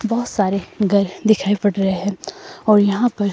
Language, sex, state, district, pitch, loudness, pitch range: Hindi, female, Himachal Pradesh, Shimla, 205 Hz, -18 LUFS, 200-215 Hz